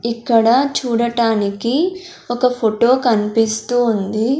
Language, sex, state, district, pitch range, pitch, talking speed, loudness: Telugu, female, Andhra Pradesh, Sri Satya Sai, 225-250 Hz, 235 Hz, 80 wpm, -16 LUFS